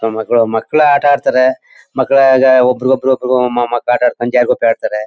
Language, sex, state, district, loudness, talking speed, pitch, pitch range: Kannada, male, Karnataka, Mysore, -12 LUFS, 140 wpm, 125 Hz, 120-130 Hz